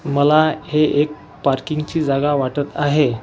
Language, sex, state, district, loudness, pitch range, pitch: Marathi, male, Maharashtra, Washim, -18 LUFS, 140-150 Hz, 145 Hz